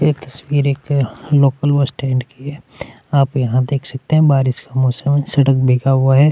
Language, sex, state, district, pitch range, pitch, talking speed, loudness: Hindi, male, Chhattisgarh, Korba, 130-145 Hz, 135 Hz, 210 wpm, -16 LUFS